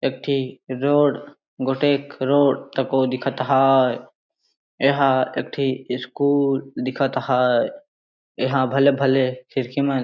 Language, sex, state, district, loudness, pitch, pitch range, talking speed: Sadri, male, Chhattisgarh, Jashpur, -21 LUFS, 135 Hz, 130-140 Hz, 100 wpm